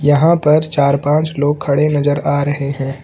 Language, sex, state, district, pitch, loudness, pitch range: Hindi, male, Uttar Pradesh, Lucknow, 145 Hz, -15 LUFS, 140-150 Hz